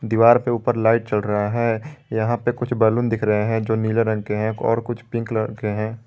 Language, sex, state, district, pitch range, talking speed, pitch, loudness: Hindi, male, Jharkhand, Garhwa, 110-120 Hz, 245 wpm, 115 Hz, -21 LUFS